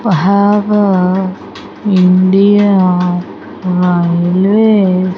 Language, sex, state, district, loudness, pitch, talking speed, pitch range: English, female, Andhra Pradesh, Sri Satya Sai, -11 LUFS, 185 Hz, 45 wpm, 180-200 Hz